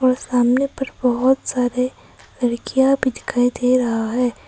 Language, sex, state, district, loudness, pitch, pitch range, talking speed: Hindi, female, Arunachal Pradesh, Papum Pare, -19 LUFS, 250 Hz, 245-260 Hz, 135 wpm